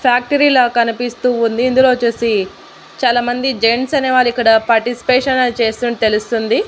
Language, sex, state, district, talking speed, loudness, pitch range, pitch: Telugu, female, Andhra Pradesh, Annamaya, 125 wpm, -14 LUFS, 230-255 Hz, 245 Hz